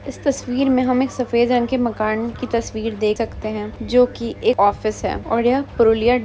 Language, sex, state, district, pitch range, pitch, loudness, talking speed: Hindi, female, West Bengal, Purulia, 220-250 Hz, 235 Hz, -19 LUFS, 210 wpm